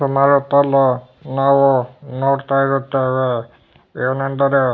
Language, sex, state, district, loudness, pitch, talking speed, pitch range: Kannada, male, Karnataka, Bellary, -17 LUFS, 135 Hz, 100 wpm, 130-140 Hz